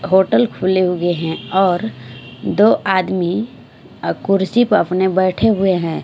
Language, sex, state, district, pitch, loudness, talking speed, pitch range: Hindi, female, Punjab, Fazilka, 185 Hz, -16 LUFS, 140 wpm, 175-195 Hz